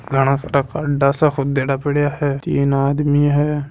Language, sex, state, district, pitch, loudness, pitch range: Hindi, male, Rajasthan, Nagaur, 140 Hz, -18 LUFS, 140-145 Hz